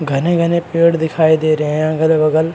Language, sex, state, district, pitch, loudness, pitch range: Hindi, male, Maharashtra, Chandrapur, 160 Hz, -14 LUFS, 155-170 Hz